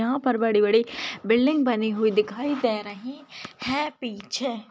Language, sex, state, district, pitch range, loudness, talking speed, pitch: Hindi, female, West Bengal, Dakshin Dinajpur, 220-260 Hz, -24 LUFS, 155 wpm, 240 Hz